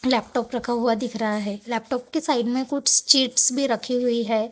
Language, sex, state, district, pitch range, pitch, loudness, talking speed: Hindi, male, Maharashtra, Gondia, 230-255 Hz, 245 Hz, -22 LUFS, 210 wpm